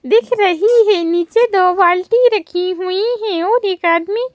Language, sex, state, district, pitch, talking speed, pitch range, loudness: Hindi, female, Madhya Pradesh, Bhopal, 395 Hz, 165 wpm, 360-460 Hz, -14 LUFS